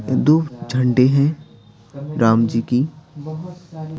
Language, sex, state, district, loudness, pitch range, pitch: Hindi, male, Bihar, Patna, -18 LUFS, 120-155 Hz, 140 Hz